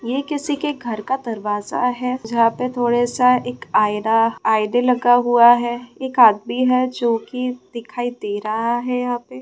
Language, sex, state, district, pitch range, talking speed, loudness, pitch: Hindi, female, Bihar, Gaya, 230-250 Hz, 180 wpm, -19 LUFS, 245 Hz